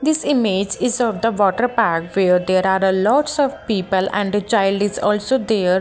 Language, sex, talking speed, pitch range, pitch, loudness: English, female, 205 wpm, 190-235 Hz, 205 Hz, -18 LUFS